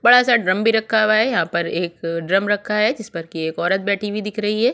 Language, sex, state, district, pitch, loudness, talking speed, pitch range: Hindi, female, Chhattisgarh, Sukma, 210 Hz, -19 LUFS, 290 wpm, 175-220 Hz